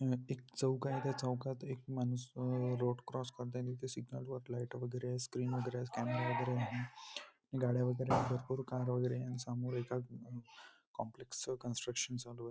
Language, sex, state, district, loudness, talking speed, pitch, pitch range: Marathi, male, Maharashtra, Nagpur, -40 LUFS, 190 wpm, 125 Hz, 125-130 Hz